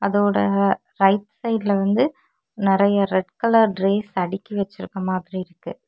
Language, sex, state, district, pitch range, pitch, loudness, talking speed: Tamil, female, Tamil Nadu, Kanyakumari, 185-210 Hz, 195 Hz, -21 LUFS, 120 wpm